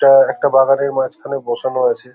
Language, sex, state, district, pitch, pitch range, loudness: Bengali, male, West Bengal, Paschim Medinipur, 135 Hz, 130-140 Hz, -15 LUFS